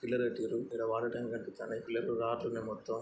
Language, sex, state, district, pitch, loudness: Telugu, male, Andhra Pradesh, Srikakulam, 115 Hz, -37 LUFS